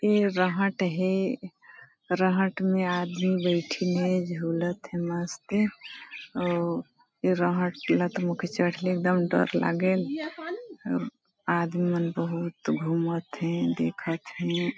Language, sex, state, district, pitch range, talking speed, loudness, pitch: Hindi, female, Chhattisgarh, Balrampur, 170-190 Hz, 105 wpm, -28 LUFS, 180 Hz